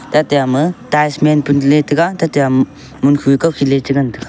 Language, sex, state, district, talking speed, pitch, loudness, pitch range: Wancho, male, Arunachal Pradesh, Longding, 170 wpm, 145 Hz, -14 LUFS, 135-150 Hz